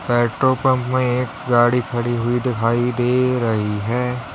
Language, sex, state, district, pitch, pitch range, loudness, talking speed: Hindi, male, Uttar Pradesh, Lalitpur, 120 Hz, 120-125 Hz, -19 LUFS, 150 wpm